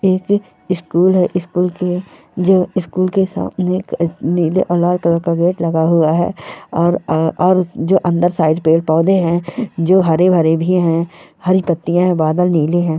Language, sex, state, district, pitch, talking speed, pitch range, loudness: Hindi, female, Bihar, Darbhanga, 175 Hz, 175 wpm, 170-185 Hz, -15 LUFS